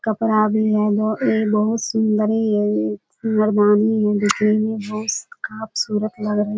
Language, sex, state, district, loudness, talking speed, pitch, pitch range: Hindi, female, Bihar, Kishanganj, -19 LUFS, 125 wpm, 215 Hz, 210-220 Hz